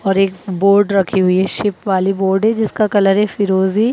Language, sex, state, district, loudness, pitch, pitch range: Hindi, female, Bihar, Gaya, -15 LUFS, 195 Hz, 190-210 Hz